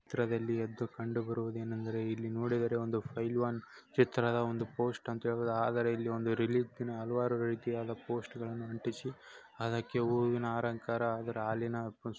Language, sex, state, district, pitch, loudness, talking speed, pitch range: Kannada, male, Karnataka, Chamarajanagar, 115 Hz, -35 LUFS, 130 wpm, 115-120 Hz